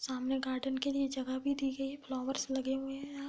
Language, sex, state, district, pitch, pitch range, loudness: Hindi, female, Bihar, Bhagalpur, 270 Hz, 265-275 Hz, -36 LUFS